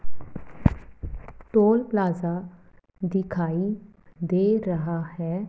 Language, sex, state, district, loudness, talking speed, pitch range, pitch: Hindi, female, Punjab, Fazilka, -25 LUFS, 65 wpm, 170-205 Hz, 185 Hz